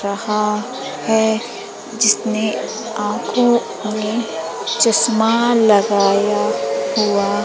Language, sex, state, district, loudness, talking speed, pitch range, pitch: Hindi, female, Madhya Pradesh, Umaria, -17 LUFS, 65 wpm, 205-225 Hz, 215 Hz